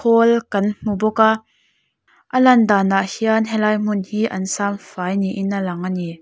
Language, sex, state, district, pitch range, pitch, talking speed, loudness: Mizo, female, Mizoram, Aizawl, 195-220 Hz, 210 Hz, 185 wpm, -18 LUFS